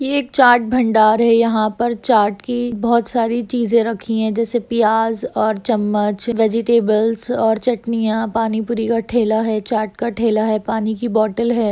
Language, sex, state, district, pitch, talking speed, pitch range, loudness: Hindi, female, Bihar, Gaya, 230 Hz, 175 wpm, 220-235 Hz, -17 LUFS